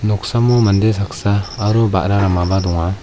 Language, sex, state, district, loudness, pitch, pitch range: Garo, male, Meghalaya, West Garo Hills, -16 LUFS, 100 Hz, 95-110 Hz